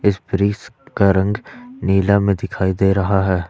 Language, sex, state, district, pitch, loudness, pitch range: Hindi, male, Jharkhand, Ranchi, 100 Hz, -18 LUFS, 95-105 Hz